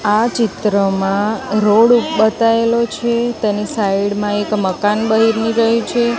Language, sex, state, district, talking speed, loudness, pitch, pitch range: Gujarati, female, Gujarat, Gandhinagar, 125 wpm, -15 LUFS, 220 Hz, 205-230 Hz